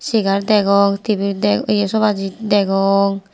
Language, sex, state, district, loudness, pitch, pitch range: Chakma, female, Tripura, Unakoti, -16 LUFS, 200 Hz, 195-210 Hz